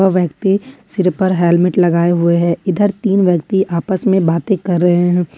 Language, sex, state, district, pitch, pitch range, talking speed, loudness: Hindi, female, Jharkhand, Ranchi, 180 Hz, 170-195 Hz, 190 wpm, -14 LUFS